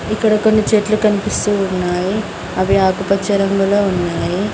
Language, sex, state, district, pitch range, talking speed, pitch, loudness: Telugu, female, Telangana, Mahabubabad, 190-215 Hz, 120 wpm, 200 Hz, -16 LUFS